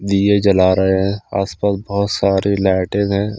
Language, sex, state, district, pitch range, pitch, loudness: Hindi, male, Chandigarh, Chandigarh, 95-100 Hz, 100 Hz, -16 LUFS